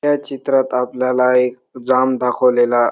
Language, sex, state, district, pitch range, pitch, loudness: Marathi, male, Maharashtra, Dhule, 125-130 Hz, 125 Hz, -16 LUFS